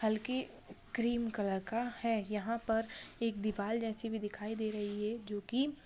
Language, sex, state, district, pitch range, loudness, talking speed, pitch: Hindi, female, Bihar, Kishanganj, 210-230 Hz, -37 LUFS, 175 wpm, 225 Hz